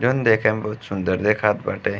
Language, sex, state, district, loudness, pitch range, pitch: Bhojpuri, male, Uttar Pradesh, Gorakhpur, -21 LUFS, 105-110 Hz, 105 Hz